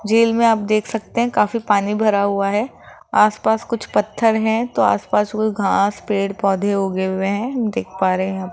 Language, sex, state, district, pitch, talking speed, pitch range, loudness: Hindi, female, Rajasthan, Jaipur, 210 Hz, 225 wpm, 200-225 Hz, -18 LUFS